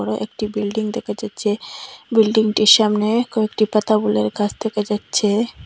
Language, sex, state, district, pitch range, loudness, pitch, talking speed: Bengali, female, Assam, Hailakandi, 205-220 Hz, -18 LUFS, 215 Hz, 125 wpm